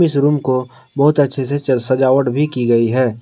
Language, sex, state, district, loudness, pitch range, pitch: Hindi, male, Jharkhand, Garhwa, -15 LUFS, 130-145 Hz, 130 Hz